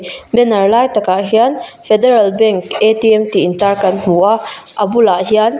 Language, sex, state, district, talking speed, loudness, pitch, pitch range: Mizo, female, Mizoram, Aizawl, 140 wpm, -12 LUFS, 215 Hz, 195-225 Hz